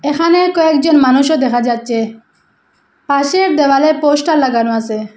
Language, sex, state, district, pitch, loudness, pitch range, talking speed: Bengali, female, Assam, Hailakandi, 280 Hz, -12 LUFS, 235-315 Hz, 115 wpm